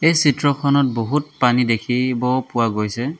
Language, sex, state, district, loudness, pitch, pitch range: Assamese, male, Assam, Hailakandi, -19 LUFS, 130 Hz, 120-145 Hz